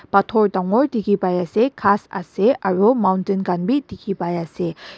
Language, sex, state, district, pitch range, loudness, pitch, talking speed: Nagamese, female, Nagaland, Dimapur, 180-215 Hz, -19 LUFS, 195 Hz, 170 wpm